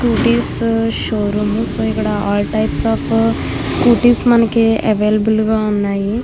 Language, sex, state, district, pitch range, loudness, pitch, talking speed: Telugu, female, Andhra Pradesh, Krishna, 210-230 Hz, -15 LUFS, 220 Hz, 105 wpm